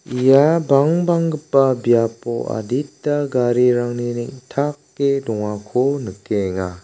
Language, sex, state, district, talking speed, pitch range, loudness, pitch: Garo, male, Meghalaya, South Garo Hills, 70 wpm, 115-140 Hz, -19 LUFS, 125 Hz